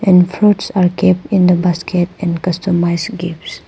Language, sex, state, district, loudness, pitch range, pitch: English, female, Arunachal Pradesh, Papum Pare, -14 LUFS, 175-190 Hz, 180 Hz